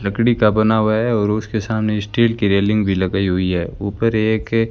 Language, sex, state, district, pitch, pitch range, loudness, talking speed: Hindi, male, Rajasthan, Bikaner, 110 Hz, 100-110 Hz, -17 LUFS, 215 wpm